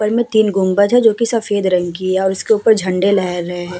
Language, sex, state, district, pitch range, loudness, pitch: Hindi, female, Uttar Pradesh, Hamirpur, 185-220 Hz, -15 LUFS, 200 Hz